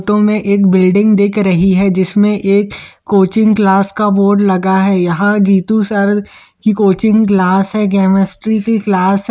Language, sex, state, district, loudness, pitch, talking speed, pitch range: Hindi, male, Chhattisgarh, Bilaspur, -11 LUFS, 200 Hz, 170 wpm, 190-210 Hz